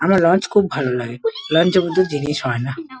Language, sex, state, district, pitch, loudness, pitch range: Bengali, female, West Bengal, Kolkata, 170 Hz, -18 LUFS, 135-190 Hz